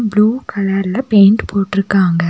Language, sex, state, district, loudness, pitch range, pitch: Tamil, female, Tamil Nadu, Nilgiris, -14 LUFS, 195-210 Hz, 200 Hz